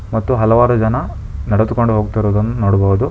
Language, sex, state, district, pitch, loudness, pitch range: Kannada, male, Karnataka, Bangalore, 110 Hz, -15 LUFS, 105-120 Hz